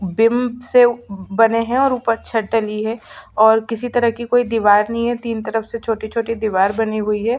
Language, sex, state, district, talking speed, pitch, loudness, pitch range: Hindi, female, Chhattisgarh, Sukma, 210 wpm, 225 Hz, -17 LUFS, 215-235 Hz